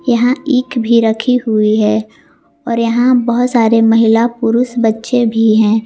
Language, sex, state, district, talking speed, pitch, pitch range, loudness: Hindi, female, Jharkhand, Garhwa, 155 wpm, 230 Hz, 225-245 Hz, -12 LUFS